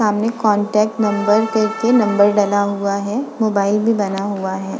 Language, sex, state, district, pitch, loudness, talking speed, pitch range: Hindi, female, Uttar Pradesh, Muzaffarnagar, 210 Hz, -17 LUFS, 160 wpm, 200-220 Hz